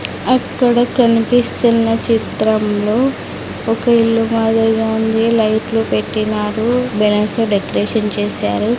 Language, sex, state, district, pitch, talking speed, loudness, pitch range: Telugu, female, Andhra Pradesh, Sri Satya Sai, 225 Hz, 95 wpm, -15 LUFS, 215-235 Hz